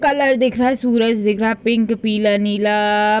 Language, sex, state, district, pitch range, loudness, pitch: Hindi, female, Bihar, Bhagalpur, 210-245 Hz, -17 LUFS, 225 Hz